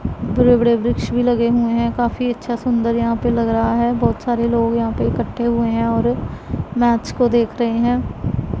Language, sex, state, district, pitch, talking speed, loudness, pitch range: Hindi, female, Punjab, Pathankot, 235 Hz, 200 wpm, -18 LUFS, 230-240 Hz